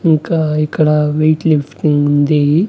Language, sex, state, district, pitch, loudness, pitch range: Telugu, male, Andhra Pradesh, Annamaya, 150 Hz, -13 LUFS, 150-155 Hz